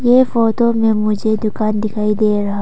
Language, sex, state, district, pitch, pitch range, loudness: Hindi, female, Arunachal Pradesh, Papum Pare, 215 Hz, 210-225 Hz, -15 LUFS